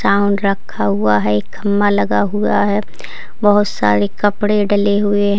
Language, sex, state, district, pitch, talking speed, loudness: Hindi, female, Uttar Pradesh, Lalitpur, 200 Hz, 165 wpm, -15 LUFS